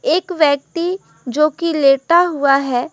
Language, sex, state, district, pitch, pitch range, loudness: Hindi, female, West Bengal, Alipurduar, 305 Hz, 275-345 Hz, -16 LUFS